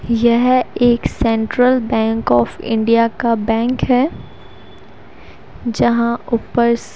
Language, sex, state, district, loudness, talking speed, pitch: Hindi, female, Haryana, Rohtak, -16 LUFS, 95 wpm, 230 Hz